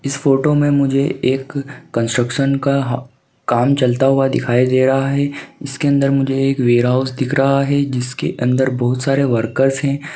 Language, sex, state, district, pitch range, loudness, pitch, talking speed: Hindi, male, Uttarakhand, Uttarkashi, 125-140 Hz, -16 LUFS, 135 Hz, 165 wpm